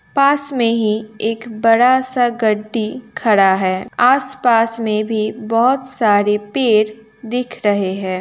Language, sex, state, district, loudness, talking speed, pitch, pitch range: Hindi, female, Uttar Pradesh, Hamirpur, -16 LUFS, 130 wpm, 225 Hz, 215-245 Hz